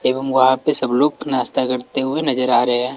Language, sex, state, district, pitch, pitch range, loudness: Hindi, male, Bihar, West Champaran, 130 Hz, 125-135 Hz, -17 LUFS